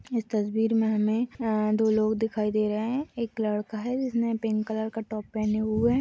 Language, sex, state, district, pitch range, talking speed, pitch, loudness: Hindi, female, Uttar Pradesh, Deoria, 215-230 Hz, 230 wpm, 220 Hz, -27 LUFS